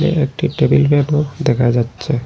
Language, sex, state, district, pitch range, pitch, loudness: Bengali, male, Assam, Hailakandi, 125-150 Hz, 145 Hz, -15 LUFS